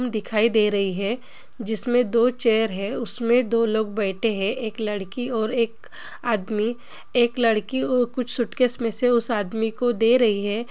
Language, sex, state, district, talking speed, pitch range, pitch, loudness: Hindi, female, Bihar, Gopalganj, 175 wpm, 215-245 Hz, 230 Hz, -23 LUFS